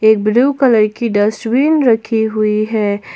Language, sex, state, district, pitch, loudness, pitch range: Hindi, female, Jharkhand, Palamu, 220 Hz, -14 LUFS, 215-240 Hz